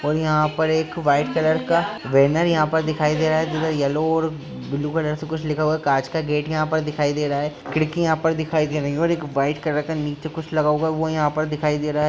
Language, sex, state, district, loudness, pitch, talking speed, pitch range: Hindi, male, Maharashtra, Pune, -21 LUFS, 155 Hz, 275 wpm, 150-160 Hz